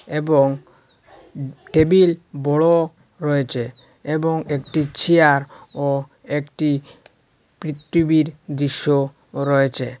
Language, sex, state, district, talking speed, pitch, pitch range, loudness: Bengali, male, Assam, Hailakandi, 70 wpm, 145 Hz, 140-155 Hz, -19 LUFS